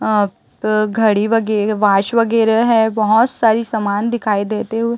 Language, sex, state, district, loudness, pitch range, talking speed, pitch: Hindi, female, Chhattisgarh, Raipur, -16 LUFS, 210-225 Hz, 145 wpm, 220 Hz